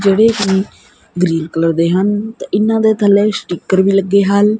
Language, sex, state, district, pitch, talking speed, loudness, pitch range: Punjabi, male, Punjab, Kapurthala, 200 Hz, 180 wpm, -14 LUFS, 185-210 Hz